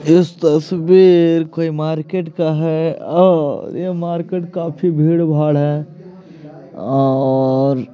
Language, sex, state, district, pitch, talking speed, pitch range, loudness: Hindi, male, Bihar, Patna, 165 Hz, 105 wpm, 150-175 Hz, -15 LUFS